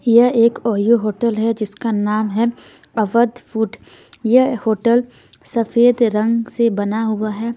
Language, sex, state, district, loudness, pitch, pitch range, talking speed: Hindi, female, Bihar, Patna, -17 LUFS, 230 Hz, 215-235 Hz, 145 wpm